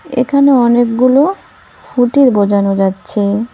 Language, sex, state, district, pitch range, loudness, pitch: Bengali, male, West Bengal, Cooch Behar, 205-270 Hz, -12 LUFS, 240 Hz